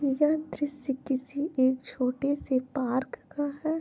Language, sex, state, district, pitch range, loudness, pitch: Hindi, female, Uttar Pradesh, Jyotiba Phule Nagar, 260-290 Hz, -29 LUFS, 280 Hz